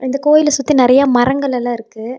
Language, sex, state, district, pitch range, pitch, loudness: Tamil, female, Tamil Nadu, Nilgiris, 245-280 Hz, 265 Hz, -13 LUFS